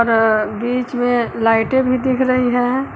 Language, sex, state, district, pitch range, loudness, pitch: Hindi, female, Uttar Pradesh, Lucknow, 225-255 Hz, -17 LUFS, 245 Hz